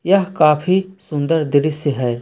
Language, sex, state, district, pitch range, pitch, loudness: Hindi, male, Jharkhand, Ranchi, 145-185 Hz, 155 Hz, -17 LUFS